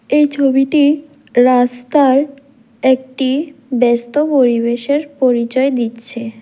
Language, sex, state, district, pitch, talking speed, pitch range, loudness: Bengali, female, Tripura, West Tripura, 260 Hz, 75 wpm, 245-285 Hz, -14 LUFS